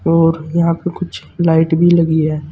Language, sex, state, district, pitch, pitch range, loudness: Hindi, male, Uttar Pradesh, Saharanpur, 165 Hz, 160-170 Hz, -14 LUFS